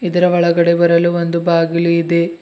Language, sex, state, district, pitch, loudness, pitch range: Kannada, male, Karnataka, Bidar, 170 Hz, -14 LUFS, 170-175 Hz